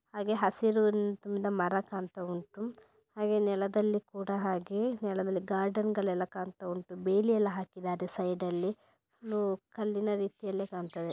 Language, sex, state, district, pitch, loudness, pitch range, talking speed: Kannada, female, Karnataka, Dakshina Kannada, 200 Hz, -33 LUFS, 185-210 Hz, 130 wpm